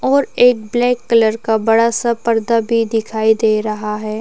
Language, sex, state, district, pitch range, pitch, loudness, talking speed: Hindi, female, Uttarakhand, Tehri Garhwal, 220-235 Hz, 225 Hz, -15 LUFS, 200 wpm